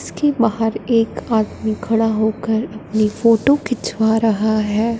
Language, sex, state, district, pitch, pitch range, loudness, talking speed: Hindi, female, Punjab, Fazilka, 220 Hz, 215-230 Hz, -18 LUFS, 130 wpm